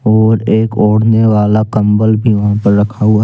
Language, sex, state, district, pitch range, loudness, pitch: Hindi, male, Jharkhand, Deoghar, 105-110 Hz, -11 LUFS, 110 Hz